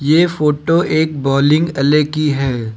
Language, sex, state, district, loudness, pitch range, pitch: Hindi, male, Uttar Pradesh, Lucknow, -15 LUFS, 140-160 Hz, 150 Hz